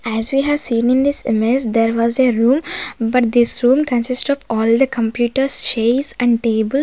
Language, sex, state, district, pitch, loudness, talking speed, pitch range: English, female, Maharashtra, Gondia, 245 Hz, -16 LUFS, 200 wpm, 230-270 Hz